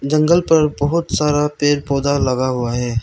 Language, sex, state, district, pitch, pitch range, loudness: Hindi, male, Arunachal Pradesh, Lower Dibang Valley, 145 Hz, 130-150 Hz, -17 LUFS